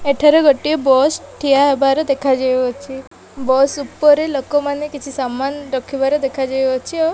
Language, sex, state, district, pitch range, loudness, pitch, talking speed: Odia, female, Odisha, Malkangiri, 265-290 Hz, -16 LUFS, 275 Hz, 115 wpm